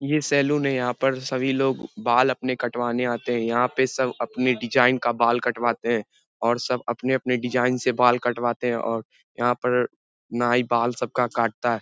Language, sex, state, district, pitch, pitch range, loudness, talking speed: Hindi, male, Bihar, Lakhisarai, 125 Hz, 120-130 Hz, -23 LUFS, 190 wpm